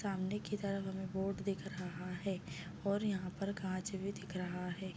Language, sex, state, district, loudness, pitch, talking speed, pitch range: Hindi, female, Chhattisgarh, Bilaspur, -41 LUFS, 190 Hz, 180 wpm, 185-200 Hz